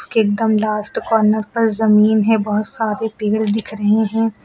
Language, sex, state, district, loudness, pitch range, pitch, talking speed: Hindi, female, Uttar Pradesh, Lucknow, -17 LUFS, 210-225 Hz, 215 Hz, 160 wpm